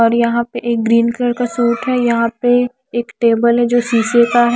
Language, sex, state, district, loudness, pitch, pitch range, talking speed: Hindi, female, Himachal Pradesh, Shimla, -15 LUFS, 235 Hz, 235-245 Hz, 235 wpm